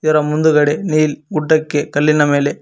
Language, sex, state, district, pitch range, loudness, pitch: Kannada, male, Karnataka, Koppal, 145-155 Hz, -15 LUFS, 150 Hz